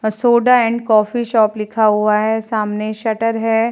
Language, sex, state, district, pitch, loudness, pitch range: Hindi, female, Uttar Pradesh, Jalaun, 220 Hz, -16 LUFS, 215-230 Hz